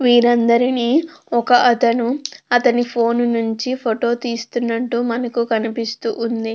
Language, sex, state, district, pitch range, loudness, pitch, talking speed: Telugu, female, Andhra Pradesh, Krishna, 235-245 Hz, -18 LUFS, 240 Hz, 100 wpm